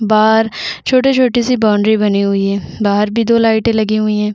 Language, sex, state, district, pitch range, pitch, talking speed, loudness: Hindi, female, Chhattisgarh, Bastar, 210-230 Hz, 215 Hz, 205 wpm, -13 LUFS